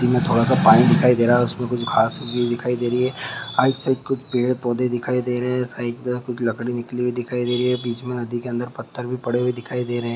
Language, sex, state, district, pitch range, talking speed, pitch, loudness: Hindi, male, Bihar, Begusarai, 120-125 Hz, 295 wpm, 125 Hz, -21 LUFS